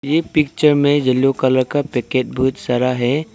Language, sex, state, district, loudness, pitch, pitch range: Hindi, male, Arunachal Pradesh, Lower Dibang Valley, -17 LUFS, 135 Hz, 125-145 Hz